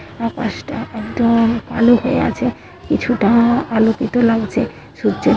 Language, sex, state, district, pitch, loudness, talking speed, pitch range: Bengali, female, West Bengal, Dakshin Dinajpur, 235 Hz, -17 LUFS, 125 wpm, 230-245 Hz